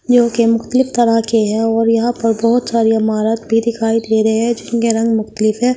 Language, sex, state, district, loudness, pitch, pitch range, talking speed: Hindi, female, Delhi, New Delhi, -15 LUFS, 230 Hz, 225-235 Hz, 220 wpm